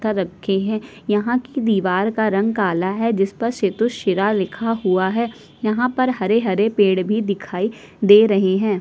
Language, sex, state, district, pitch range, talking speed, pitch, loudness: Hindi, female, Chhattisgarh, Sukma, 195-225 Hz, 170 wpm, 210 Hz, -19 LUFS